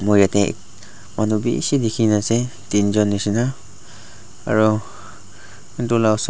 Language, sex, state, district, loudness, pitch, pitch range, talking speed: Nagamese, male, Nagaland, Dimapur, -19 LUFS, 110 Hz, 105-115 Hz, 150 wpm